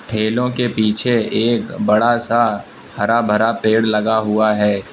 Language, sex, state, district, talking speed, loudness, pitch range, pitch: Hindi, male, Uttar Pradesh, Lucknow, 145 wpm, -16 LUFS, 105-120 Hz, 110 Hz